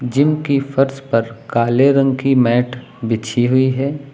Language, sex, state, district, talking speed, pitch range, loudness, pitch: Hindi, male, Uttar Pradesh, Lucknow, 160 wpm, 120-135 Hz, -16 LUFS, 130 Hz